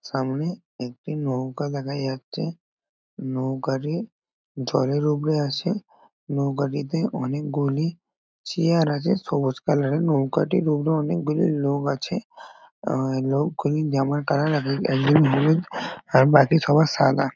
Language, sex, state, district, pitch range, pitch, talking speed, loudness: Bengali, male, West Bengal, North 24 Parganas, 135-160 Hz, 145 Hz, 115 wpm, -23 LUFS